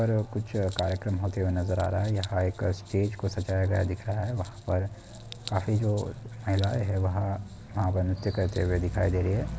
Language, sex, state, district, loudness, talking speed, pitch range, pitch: Hindi, male, Chhattisgarh, Kabirdham, -29 LUFS, 215 wpm, 95-105 Hz, 100 Hz